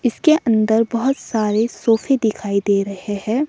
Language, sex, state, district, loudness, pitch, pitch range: Hindi, female, Himachal Pradesh, Shimla, -18 LUFS, 225 Hz, 210-245 Hz